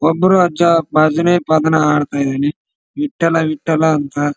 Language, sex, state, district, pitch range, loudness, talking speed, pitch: Kannada, male, Karnataka, Dharwad, 150-170 Hz, -15 LUFS, 125 wpm, 160 Hz